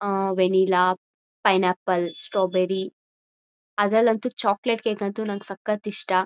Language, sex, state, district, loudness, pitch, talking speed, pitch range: Kannada, female, Karnataka, Mysore, -23 LUFS, 195 Hz, 115 wpm, 185-210 Hz